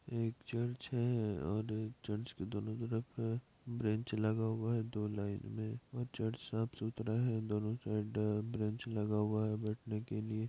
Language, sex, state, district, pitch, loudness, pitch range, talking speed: Hindi, male, Bihar, Madhepura, 110 Hz, -39 LUFS, 105-115 Hz, 165 wpm